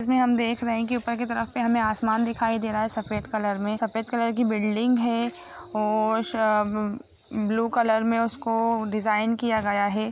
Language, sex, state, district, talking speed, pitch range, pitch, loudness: Hindi, female, Jharkhand, Jamtara, 200 wpm, 215-235 Hz, 225 Hz, -25 LUFS